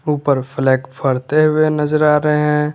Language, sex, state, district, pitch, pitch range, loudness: Hindi, male, Jharkhand, Garhwa, 150 Hz, 135-150 Hz, -16 LUFS